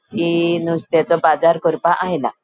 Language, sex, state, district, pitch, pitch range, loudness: Konkani, female, Goa, North and South Goa, 170 Hz, 165-170 Hz, -17 LUFS